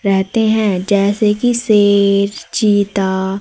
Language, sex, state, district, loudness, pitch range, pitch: Hindi, female, Madhya Pradesh, Umaria, -14 LUFS, 195-215 Hz, 205 Hz